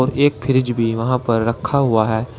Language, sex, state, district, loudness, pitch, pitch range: Hindi, male, Uttar Pradesh, Saharanpur, -18 LUFS, 120 Hz, 115-130 Hz